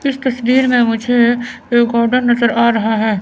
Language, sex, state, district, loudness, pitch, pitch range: Hindi, female, Chandigarh, Chandigarh, -14 LUFS, 240 Hz, 230-245 Hz